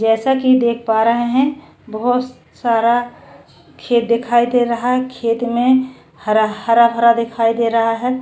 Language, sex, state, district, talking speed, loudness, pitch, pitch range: Hindi, female, Maharashtra, Chandrapur, 155 wpm, -16 LUFS, 235 Hz, 230-250 Hz